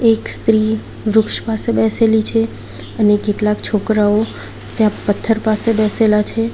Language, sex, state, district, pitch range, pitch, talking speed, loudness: Gujarati, female, Gujarat, Valsad, 210-225 Hz, 220 Hz, 130 wpm, -15 LUFS